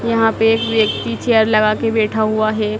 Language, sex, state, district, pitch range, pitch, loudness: Hindi, female, Madhya Pradesh, Dhar, 215-225 Hz, 220 Hz, -16 LUFS